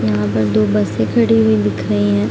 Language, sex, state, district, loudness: Hindi, female, Bihar, Araria, -15 LUFS